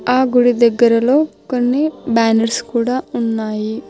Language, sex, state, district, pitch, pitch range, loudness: Telugu, female, Telangana, Hyderabad, 240 Hz, 230-255 Hz, -15 LUFS